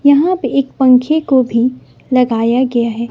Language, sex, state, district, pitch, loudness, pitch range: Hindi, female, Bihar, West Champaran, 255 Hz, -13 LUFS, 235-275 Hz